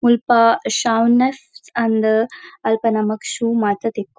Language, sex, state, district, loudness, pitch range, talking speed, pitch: Tulu, female, Karnataka, Dakshina Kannada, -17 LUFS, 220-240 Hz, 100 wpm, 230 Hz